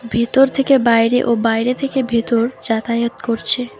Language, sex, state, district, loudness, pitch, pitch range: Bengali, female, West Bengal, Alipurduar, -16 LUFS, 235 Hz, 230-250 Hz